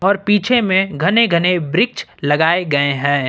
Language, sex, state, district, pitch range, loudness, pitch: Hindi, male, Jharkhand, Ranchi, 145-205 Hz, -15 LUFS, 180 Hz